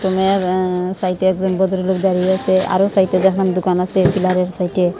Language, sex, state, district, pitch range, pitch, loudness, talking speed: Bengali, female, Tripura, Unakoti, 185-190 Hz, 185 Hz, -16 LUFS, 180 wpm